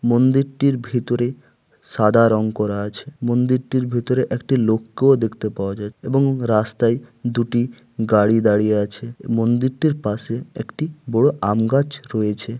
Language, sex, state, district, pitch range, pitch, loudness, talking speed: Bengali, male, West Bengal, Malda, 110-130 Hz, 120 Hz, -20 LUFS, 130 wpm